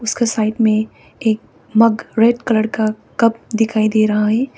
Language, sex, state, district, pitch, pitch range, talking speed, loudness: Hindi, female, Arunachal Pradesh, Papum Pare, 220 Hz, 215-230 Hz, 170 wpm, -16 LUFS